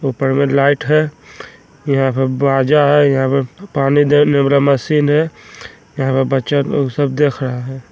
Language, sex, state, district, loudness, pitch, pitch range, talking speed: Magahi, male, Bihar, Jamui, -15 LUFS, 140 Hz, 135-145 Hz, 175 wpm